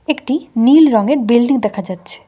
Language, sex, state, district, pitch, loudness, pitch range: Bengali, female, West Bengal, Cooch Behar, 255 Hz, -13 LUFS, 220-290 Hz